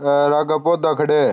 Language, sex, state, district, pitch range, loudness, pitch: Marwari, male, Rajasthan, Churu, 145-155 Hz, -17 LUFS, 150 Hz